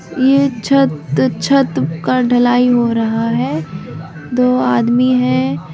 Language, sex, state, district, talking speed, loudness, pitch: Hindi, female, Bihar, Begusarai, 115 wpm, -14 LUFS, 165 Hz